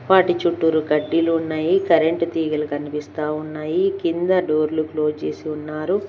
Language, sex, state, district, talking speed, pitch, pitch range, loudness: Telugu, female, Andhra Pradesh, Manyam, 130 wpm, 160 Hz, 155-175 Hz, -21 LUFS